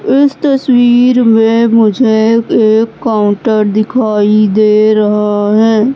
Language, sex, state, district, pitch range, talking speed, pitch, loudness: Hindi, female, Madhya Pradesh, Katni, 215-240 Hz, 100 wpm, 220 Hz, -9 LUFS